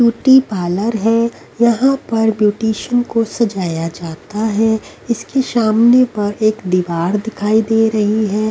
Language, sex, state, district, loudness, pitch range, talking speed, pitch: Hindi, female, Haryana, Rohtak, -15 LUFS, 205-235 Hz, 135 wpm, 220 Hz